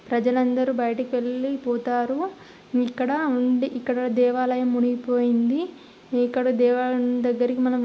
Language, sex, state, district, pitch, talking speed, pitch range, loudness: Telugu, female, Telangana, Nalgonda, 250 Hz, 105 wpm, 245-255 Hz, -23 LUFS